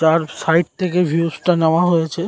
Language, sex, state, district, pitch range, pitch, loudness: Bengali, male, West Bengal, North 24 Parganas, 160-175 Hz, 165 Hz, -17 LUFS